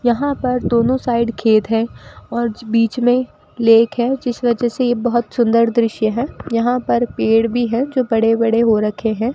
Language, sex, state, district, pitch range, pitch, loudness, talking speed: Hindi, female, Rajasthan, Bikaner, 230-245 Hz, 235 Hz, -17 LUFS, 190 wpm